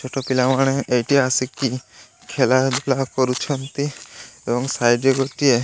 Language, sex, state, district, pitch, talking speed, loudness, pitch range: Odia, male, Odisha, Malkangiri, 130 Hz, 130 wpm, -20 LUFS, 130-135 Hz